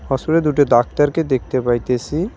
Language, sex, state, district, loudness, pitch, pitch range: Bengali, male, West Bengal, Cooch Behar, -17 LUFS, 135 Hz, 125-155 Hz